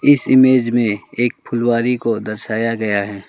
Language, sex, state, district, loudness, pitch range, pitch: Hindi, male, West Bengal, Alipurduar, -16 LUFS, 110-125 Hz, 115 Hz